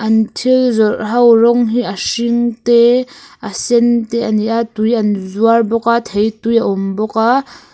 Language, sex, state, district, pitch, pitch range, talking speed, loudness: Mizo, female, Mizoram, Aizawl, 230 Hz, 220-240 Hz, 200 wpm, -14 LUFS